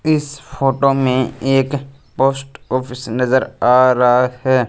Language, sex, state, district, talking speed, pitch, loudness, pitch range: Hindi, male, Punjab, Fazilka, 130 wpm, 130 Hz, -16 LUFS, 125-135 Hz